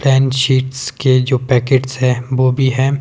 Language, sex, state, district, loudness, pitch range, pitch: Hindi, male, Himachal Pradesh, Shimla, -15 LUFS, 130-135 Hz, 130 Hz